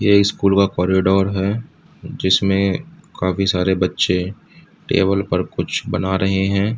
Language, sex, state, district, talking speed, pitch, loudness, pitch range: Hindi, male, Uttar Pradesh, Budaun, 135 wpm, 95 Hz, -18 LUFS, 95-110 Hz